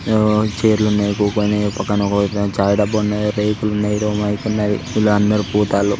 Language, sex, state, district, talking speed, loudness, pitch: Telugu, male, Telangana, Karimnagar, 140 wpm, -17 LUFS, 105 Hz